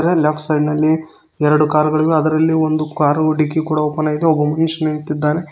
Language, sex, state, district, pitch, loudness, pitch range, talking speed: Kannada, male, Karnataka, Koppal, 155 Hz, -16 LUFS, 150-160 Hz, 175 wpm